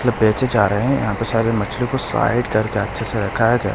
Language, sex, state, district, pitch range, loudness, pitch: Hindi, male, Delhi, New Delhi, 105-120 Hz, -19 LUFS, 115 Hz